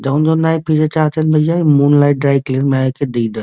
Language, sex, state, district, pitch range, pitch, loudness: Bhojpuri, male, Uttar Pradesh, Varanasi, 135-155 Hz, 145 Hz, -14 LUFS